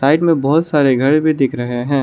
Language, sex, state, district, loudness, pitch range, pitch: Hindi, male, Arunachal Pradesh, Lower Dibang Valley, -15 LUFS, 135-155 Hz, 140 Hz